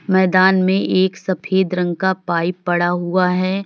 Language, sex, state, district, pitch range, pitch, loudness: Hindi, female, Uttar Pradesh, Lalitpur, 180-190 Hz, 185 Hz, -17 LUFS